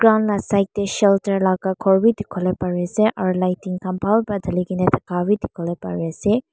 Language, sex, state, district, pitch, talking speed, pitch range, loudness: Nagamese, female, Mizoram, Aizawl, 190 Hz, 200 wpm, 180-205 Hz, -20 LUFS